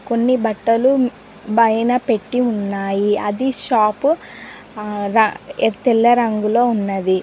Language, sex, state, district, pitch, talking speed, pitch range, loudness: Telugu, female, Telangana, Mahabubabad, 225 Hz, 85 wpm, 210-240 Hz, -17 LUFS